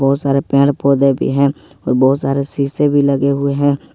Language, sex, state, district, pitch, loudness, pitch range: Hindi, male, Jharkhand, Ranchi, 140 Hz, -15 LUFS, 135-140 Hz